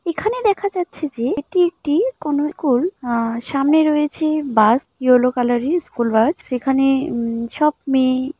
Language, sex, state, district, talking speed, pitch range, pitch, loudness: Bengali, female, West Bengal, Jalpaiguri, 145 wpm, 250-320 Hz, 285 Hz, -18 LUFS